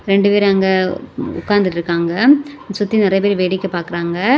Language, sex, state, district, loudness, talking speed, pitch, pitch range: Tamil, female, Tamil Nadu, Kanyakumari, -16 LUFS, 135 wpm, 195 Hz, 180-205 Hz